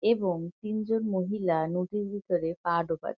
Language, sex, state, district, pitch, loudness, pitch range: Bengali, female, West Bengal, Kolkata, 185 Hz, -30 LUFS, 170-210 Hz